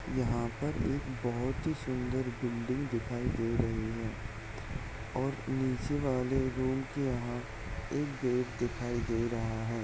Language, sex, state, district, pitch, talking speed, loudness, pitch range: Hindi, male, Maharashtra, Solapur, 120 Hz, 135 wpm, -35 LUFS, 115-130 Hz